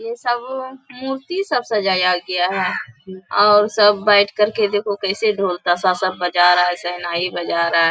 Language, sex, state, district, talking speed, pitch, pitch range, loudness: Hindi, female, Bihar, Bhagalpur, 145 wpm, 195 Hz, 180-215 Hz, -17 LUFS